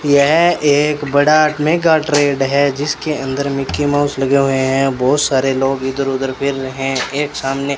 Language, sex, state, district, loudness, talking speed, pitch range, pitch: Hindi, male, Rajasthan, Bikaner, -15 LUFS, 185 wpm, 135-145 Hz, 140 Hz